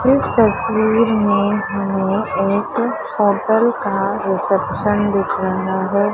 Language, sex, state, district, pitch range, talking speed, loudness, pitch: Hindi, female, Maharashtra, Mumbai Suburban, 195-220 Hz, 100 wpm, -17 LUFS, 205 Hz